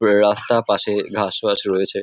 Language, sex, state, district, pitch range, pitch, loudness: Bengali, male, West Bengal, Paschim Medinipur, 100-105 Hz, 105 Hz, -18 LUFS